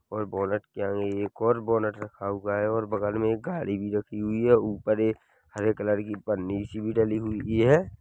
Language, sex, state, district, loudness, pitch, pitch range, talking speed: Hindi, male, Chhattisgarh, Korba, -27 LUFS, 105 Hz, 100-110 Hz, 215 wpm